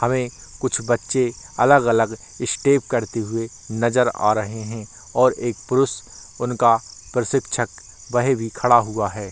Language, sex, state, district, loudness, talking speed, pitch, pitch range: Hindi, male, Bihar, Samastipur, -21 LUFS, 135 wpm, 115 Hz, 110-125 Hz